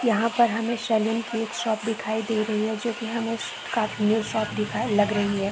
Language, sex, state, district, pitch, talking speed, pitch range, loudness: Hindi, female, Chhattisgarh, Korba, 225 Hz, 205 wpm, 215-230 Hz, -25 LUFS